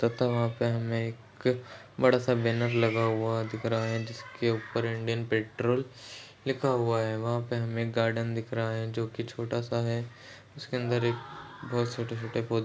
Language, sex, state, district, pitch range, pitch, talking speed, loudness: Hindi, male, Uttar Pradesh, Etah, 115-120 Hz, 115 Hz, 190 wpm, -30 LUFS